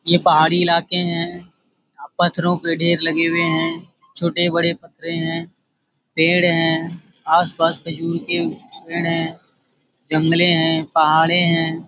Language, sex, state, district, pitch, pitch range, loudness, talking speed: Hindi, male, Jharkhand, Sahebganj, 165 Hz, 165-175 Hz, -15 LUFS, 120 wpm